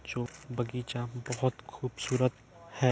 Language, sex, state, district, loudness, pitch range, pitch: Hindi, male, Bihar, East Champaran, -34 LUFS, 120-130 Hz, 125 Hz